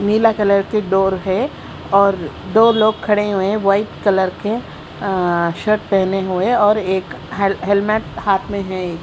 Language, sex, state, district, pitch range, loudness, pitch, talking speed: Hindi, female, Haryana, Charkhi Dadri, 190-210 Hz, -17 LUFS, 200 Hz, 165 wpm